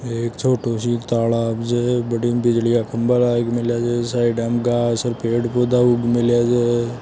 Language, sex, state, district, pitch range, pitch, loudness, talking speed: Marwari, male, Rajasthan, Churu, 115-120 Hz, 120 Hz, -19 LUFS, 195 wpm